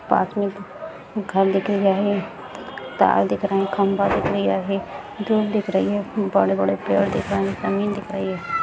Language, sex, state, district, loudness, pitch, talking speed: Hindi, female, Bihar, Jamui, -21 LUFS, 195 Hz, 200 wpm